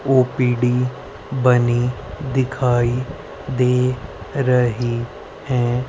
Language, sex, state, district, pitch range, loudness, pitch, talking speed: Hindi, male, Haryana, Rohtak, 120-130 Hz, -19 LUFS, 125 Hz, 60 wpm